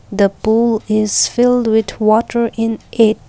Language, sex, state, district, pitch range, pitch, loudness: English, female, Assam, Kamrup Metropolitan, 215-235 Hz, 225 Hz, -15 LUFS